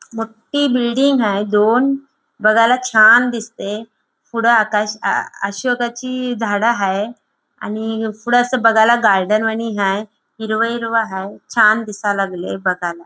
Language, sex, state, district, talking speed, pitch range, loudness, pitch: Marathi, female, Goa, North and South Goa, 120 wpm, 210-235 Hz, -16 LUFS, 225 Hz